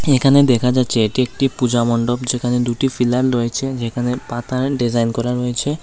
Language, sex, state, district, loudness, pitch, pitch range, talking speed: Bengali, male, Tripura, West Tripura, -17 LUFS, 125 Hz, 120-130 Hz, 165 wpm